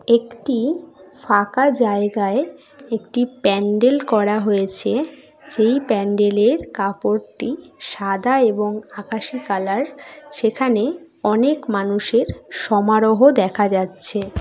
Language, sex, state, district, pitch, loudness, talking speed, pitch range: Bengali, female, West Bengal, Jhargram, 225 Hz, -18 LUFS, 90 wpm, 205-270 Hz